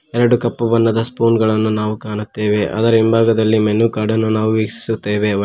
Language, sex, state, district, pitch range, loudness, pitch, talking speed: Kannada, male, Karnataka, Koppal, 105-115 Hz, -16 LUFS, 110 Hz, 165 wpm